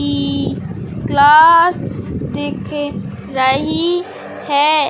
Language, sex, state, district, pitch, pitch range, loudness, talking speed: Hindi, male, Madhya Pradesh, Katni, 295 Hz, 265-325 Hz, -15 LUFS, 60 wpm